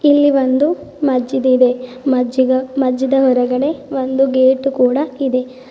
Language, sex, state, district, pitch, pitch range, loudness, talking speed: Kannada, female, Karnataka, Bidar, 260 Hz, 255-275 Hz, -15 LUFS, 115 wpm